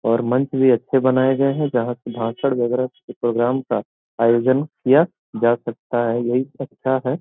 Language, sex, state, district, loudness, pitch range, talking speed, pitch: Hindi, male, Bihar, Gopalganj, -20 LUFS, 120-130 Hz, 185 wpm, 125 Hz